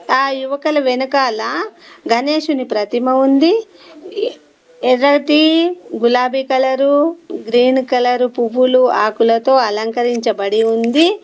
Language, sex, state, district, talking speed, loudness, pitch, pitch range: Telugu, female, Telangana, Komaram Bheem, 80 wpm, -15 LUFS, 260 Hz, 240-305 Hz